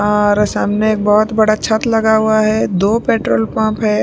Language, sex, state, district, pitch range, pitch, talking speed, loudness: Hindi, female, Punjab, Pathankot, 210-220 Hz, 215 Hz, 195 wpm, -14 LUFS